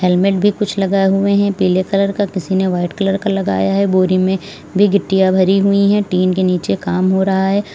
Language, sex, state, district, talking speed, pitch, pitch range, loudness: Hindi, female, Uttar Pradesh, Lalitpur, 230 wpm, 195 Hz, 185-200 Hz, -15 LUFS